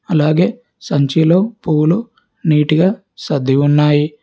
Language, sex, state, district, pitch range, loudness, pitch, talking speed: Telugu, male, Telangana, Hyderabad, 150-190 Hz, -14 LUFS, 155 Hz, 85 wpm